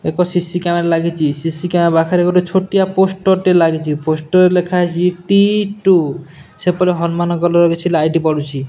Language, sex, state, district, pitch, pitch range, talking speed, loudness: Odia, male, Odisha, Nuapada, 175 Hz, 165-180 Hz, 145 wpm, -14 LUFS